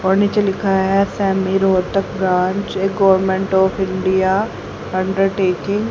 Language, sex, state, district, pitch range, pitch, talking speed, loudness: Hindi, female, Haryana, Rohtak, 190-195 Hz, 190 Hz, 120 wpm, -17 LUFS